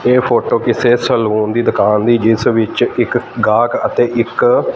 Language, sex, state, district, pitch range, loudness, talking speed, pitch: Punjabi, male, Punjab, Fazilka, 110-120 Hz, -13 LUFS, 165 wpm, 120 Hz